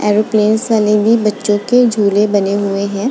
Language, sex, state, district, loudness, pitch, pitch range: Hindi, female, Uttar Pradesh, Muzaffarnagar, -13 LUFS, 210 Hz, 205-220 Hz